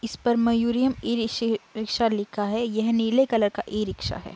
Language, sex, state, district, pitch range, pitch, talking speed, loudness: Hindi, female, Uttar Pradesh, Budaun, 220-235 Hz, 230 Hz, 205 wpm, -24 LUFS